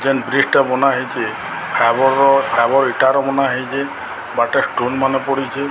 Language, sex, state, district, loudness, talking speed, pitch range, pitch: Odia, male, Odisha, Sambalpur, -16 LUFS, 160 wpm, 130-135 Hz, 135 Hz